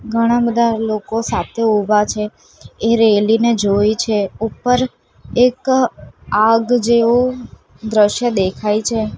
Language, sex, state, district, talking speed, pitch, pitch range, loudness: Gujarati, female, Gujarat, Valsad, 120 wpm, 225 Hz, 215-235 Hz, -16 LUFS